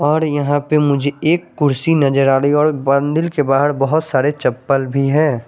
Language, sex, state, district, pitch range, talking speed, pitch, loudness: Hindi, male, Chandigarh, Chandigarh, 135-155 Hz, 220 wpm, 145 Hz, -15 LUFS